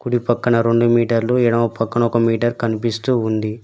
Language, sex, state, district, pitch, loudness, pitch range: Telugu, male, Telangana, Mahabubabad, 115 Hz, -17 LUFS, 115-120 Hz